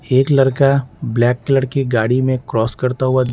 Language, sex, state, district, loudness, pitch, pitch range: Hindi, male, Bihar, Patna, -16 LUFS, 130 Hz, 120-135 Hz